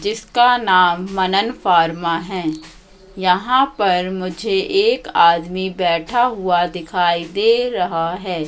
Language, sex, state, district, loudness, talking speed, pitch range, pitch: Hindi, female, Madhya Pradesh, Katni, -17 LUFS, 115 wpm, 170-225 Hz, 185 Hz